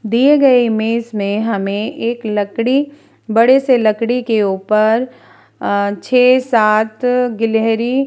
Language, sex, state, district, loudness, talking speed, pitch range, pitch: Hindi, female, Bihar, Vaishali, -14 LUFS, 135 wpm, 215-250 Hz, 230 Hz